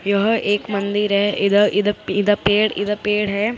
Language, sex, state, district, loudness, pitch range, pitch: Hindi, female, Maharashtra, Mumbai Suburban, -18 LUFS, 200-210 Hz, 205 Hz